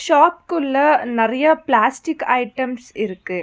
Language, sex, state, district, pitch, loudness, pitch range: Tamil, female, Tamil Nadu, Nilgiris, 260 Hz, -18 LUFS, 240-315 Hz